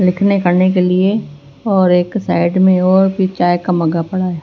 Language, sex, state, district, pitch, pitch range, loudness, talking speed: Hindi, female, Himachal Pradesh, Shimla, 185 Hz, 175-190 Hz, -14 LUFS, 190 wpm